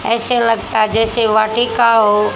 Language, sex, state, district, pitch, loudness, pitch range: Hindi, female, Haryana, Rohtak, 225 Hz, -14 LUFS, 215-230 Hz